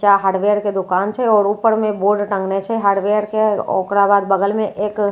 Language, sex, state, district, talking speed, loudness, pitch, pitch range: Maithili, female, Bihar, Katihar, 245 wpm, -17 LUFS, 205 Hz, 195-210 Hz